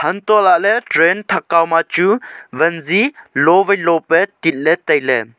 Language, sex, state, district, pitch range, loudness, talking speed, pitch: Wancho, male, Arunachal Pradesh, Longding, 165-200 Hz, -14 LUFS, 190 wpm, 170 Hz